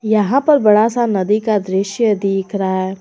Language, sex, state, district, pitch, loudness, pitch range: Hindi, female, Jharkhand, Garhwa, 210 Hz, -15 LUFS, 195-220 Hz